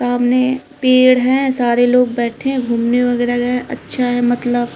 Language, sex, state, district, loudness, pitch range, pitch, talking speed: Hindi, female, Uttarakhand, Tehri Garhwal, -15 LUFS, 245-255 Hz, 245 Hz, 165 wpm